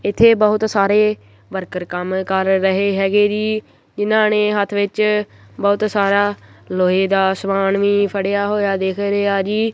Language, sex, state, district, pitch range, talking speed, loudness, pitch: Punjabi, male, Punjab, Kapurthala, 190-210 Hz, 150 wpm, -17 LUFS, 200 Hz